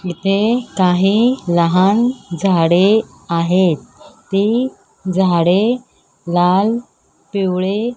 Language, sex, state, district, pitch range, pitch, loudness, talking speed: Marathi, female, Maharashtra, Mumbai Suburban, 180-225 Hz, 195 Hz, -16 LUFS, 75 wpm